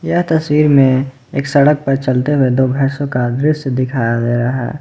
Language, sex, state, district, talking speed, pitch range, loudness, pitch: Hindi, male, Jharkhand, Ranchi, 185 wpm, 130-145 Hz, -14 LUFS, 135 Hz